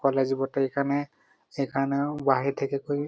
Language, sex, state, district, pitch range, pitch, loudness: Bengali, male, West Bengal, Malda, 135-140 Hz, 140 Hz, -27 LUFS